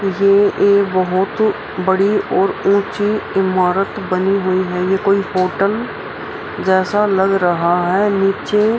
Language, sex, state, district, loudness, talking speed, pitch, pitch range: Hindi, female, Bihar, Araria, -16 LUFS, 130 wpm, 195 Hz, 185-200 Hz